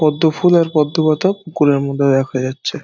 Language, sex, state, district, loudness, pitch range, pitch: Bengali, male, West Bengal, Dakshin Dinajpur, -15 LUFS, 140-165 Hz, 155 Hz